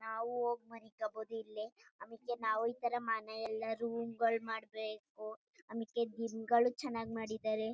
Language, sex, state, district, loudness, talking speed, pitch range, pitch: Kannada, female, Karnataka, Chamarajanagar, -39 LUFS, 115 wpm, 220-235 Hz, 225 Hz